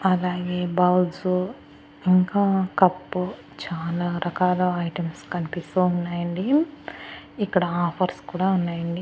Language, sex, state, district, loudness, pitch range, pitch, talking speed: Telugu, female, Andhra Pradesh, Annamaya, -24 LUFS, 175-185 Hz, 180 Hz, 85 wpm